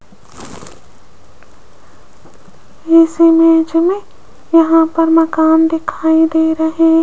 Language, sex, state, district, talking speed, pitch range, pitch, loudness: Hindi, female, Rajasthan, Jaipur, 85 wpm, 320-330 Hz, 325 Hz, -12 LUFS